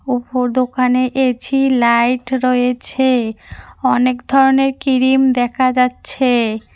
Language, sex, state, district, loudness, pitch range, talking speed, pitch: Bengali, female, West Bengal, Cooch Behar, -15 LUFS, 245-260 Hz, 90 wpm, 255 Hz